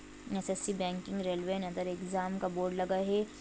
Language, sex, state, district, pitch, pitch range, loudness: Hindi, female, Bihar, Jahanabad, 185 Hz, 185-195 Hz, -35 LUFS